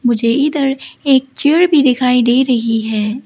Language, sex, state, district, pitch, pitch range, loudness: Hindi, female, Arunachal Pradesh, Lower Dibang Valley, 255 Hz, 235-280 Hz, -13 LUFS